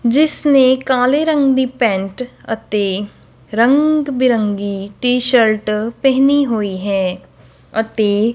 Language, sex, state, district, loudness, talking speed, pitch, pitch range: Punjabi, female, Punjab, Kapurthala, -15 LUFS, 100 wpm, 235 Hz, 210-265 Hz